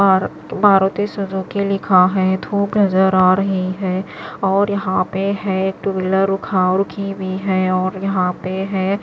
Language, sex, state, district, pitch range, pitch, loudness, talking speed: Hindi, female, Maharashtra, Washim, 185-195 Hz, 190 Hz, -17 LUFS, 175 wpm